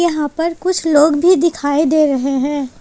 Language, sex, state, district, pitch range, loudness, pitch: Hindi, female, Jharkhand, Palamu, 285-335 Hz, -15 LUFS, 305 Hz